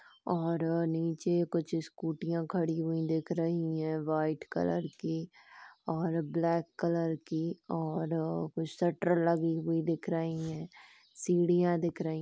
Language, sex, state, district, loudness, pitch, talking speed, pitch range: Hindi, female, Chhattisgarh, Jashpur, -33 LUFS, 165 Hz, 140 wpm, 160-170 Hz